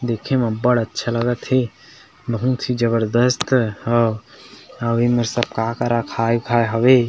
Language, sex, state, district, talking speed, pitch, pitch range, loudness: Chhattisgarhi, male, Chhattisgarh, Sarguja, 150 wpm, 120 Hz, 115-125 Hz, -19 LUFS